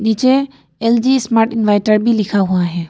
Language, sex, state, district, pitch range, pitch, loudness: Hindi, female, Arunachal Pradesh, Papum Pare, 205-235 Hz, 220 Hz, -14 LUFS